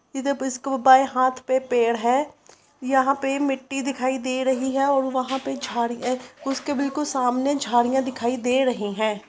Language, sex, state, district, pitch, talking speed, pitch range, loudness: Hindi, female, Uttar Pradesh, Jyotiba Phule Nagar, 265 Hz, 175 wpm, 250-275 Hz, -23 LUFS